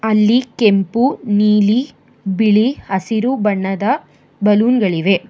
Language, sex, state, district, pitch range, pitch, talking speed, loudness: Kannada, female, Karnataka, Bangalore, 200-240 Hz, 215 Hz, 90 wpm, -15 LUFS